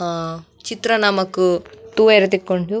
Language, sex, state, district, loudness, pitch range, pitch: Tulu, female, Karnataka, Dakshina Kannada, -17 LUFS, 180-220 Hz, 195 Hz